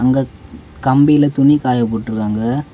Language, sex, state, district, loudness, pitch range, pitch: Tamil, male, Tamil Nadu, Kanyakumari, -15 LUFS, 110-140 Hz, 125 Hz